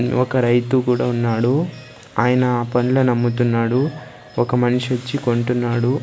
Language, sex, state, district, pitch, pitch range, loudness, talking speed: Telugu, male, Andhra Pradesh, Sri Satya Sai, 125 Hz, 120-125 Hz, -19 LUFS, 110 wpm